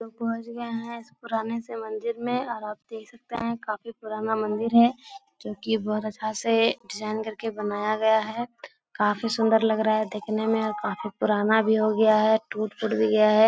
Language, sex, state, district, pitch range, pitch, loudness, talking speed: Hindi, female, Bihar, Jahanabad, 215-230 Hz, 220 Hz, -25 LUFS, 205 wpm